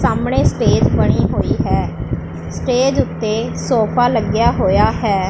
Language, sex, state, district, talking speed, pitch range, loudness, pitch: Punjabi, female, Punjab, Pathankot, 125 wpm, 215-250 Hz, -16 LUFS, 230 Hz